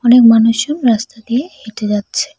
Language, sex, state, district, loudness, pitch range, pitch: Bengali, female, West Bengal, Cooch Behar, -13 LUFS, 225-270 Hz, 230 Hz